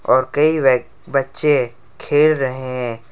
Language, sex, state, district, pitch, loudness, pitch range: Hindi, male, Jharkhand, Ranchi, 130 Hz, -17 LUFS, 125-145 Hz